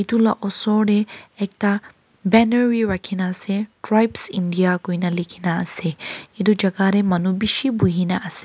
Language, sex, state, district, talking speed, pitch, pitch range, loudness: Nagamese, female, Nagaland, Kohima, 170 wpm, 200 Hz, 180-215 Hz, -20 LUFS